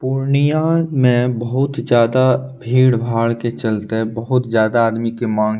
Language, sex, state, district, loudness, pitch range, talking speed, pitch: Maithili, male, Bihar, Purnia, -17 LUFS, 115-130 Hz, 140 wpm, 120 Hz